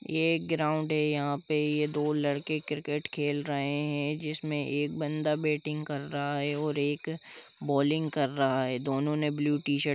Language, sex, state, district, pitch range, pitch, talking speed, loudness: Hindi, male, Jharkhand, Jamtara, 145-150 Hz, 150 Hz, 175 wpm, -30 LUFS